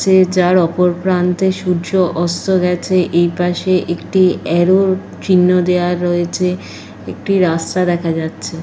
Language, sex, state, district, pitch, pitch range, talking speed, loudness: Bengali, female, Jharkhand, Jamtara, 180 Hz, 175-185 Hz, 125 wpm, -15 LUFS